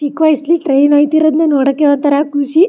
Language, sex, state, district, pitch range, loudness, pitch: Kannada, female, Karnataka, Chamarajanagar, 285-315 Hz, -12 LUFS, 290 Hz